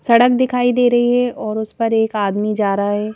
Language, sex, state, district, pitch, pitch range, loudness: Hindi, female, Madhya Pradesh, Bhopal, 225 Hz, 210-245 Hz, -16 LUFS